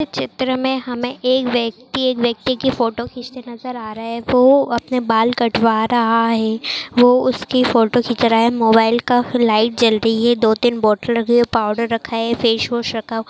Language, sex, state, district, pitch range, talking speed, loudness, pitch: Hindi, female, Maharashtra, Dhule, 225-250 Hz, 200 wpm, -16 LUFS, 235 Hz